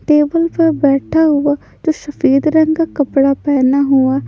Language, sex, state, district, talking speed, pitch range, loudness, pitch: Hindi, female, Punjab, Pathankot, 155 wpm, 275-315 Hz, -14 LUFS, 290 Hz